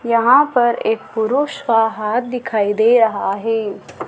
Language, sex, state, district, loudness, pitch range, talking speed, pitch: Hindi, female, Madhya Pradesh, Dhar, -16 LUFS, 220-245 Hz, 145 wpm, 225 Hz